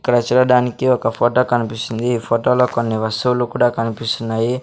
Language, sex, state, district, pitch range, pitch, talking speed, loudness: Telugu, male, Andhra Pradesh, Sri Satya Sai, 115-125 Hz, 120 Hz, 145 wpm, -17 LUFS